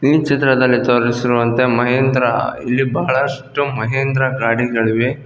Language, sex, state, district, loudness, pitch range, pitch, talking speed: Kannada, male, Karnataka, Koppal, -16 LUFS, 120-135 Hz, 130 Hz, 90 wpm